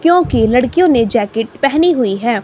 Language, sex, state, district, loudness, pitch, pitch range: Hindi, female, Himachal Pradesh, Shimla, -13 LUFS, 245 Hz, 225-325 Hz